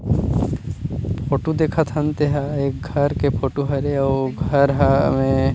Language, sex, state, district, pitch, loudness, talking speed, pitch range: Chhattisgarhi, male, Chhattisgarh, Rajnandgaon, 140 Hz, -20 LUFS, 120 wpm, 135-145 Hz